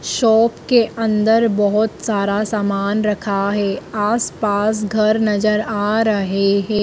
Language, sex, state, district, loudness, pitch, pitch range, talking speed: Hindi, female, Madhya Pradesh, Dhar, -17 LUFS, 210 Hz, 205-220 Hz, 125 wpm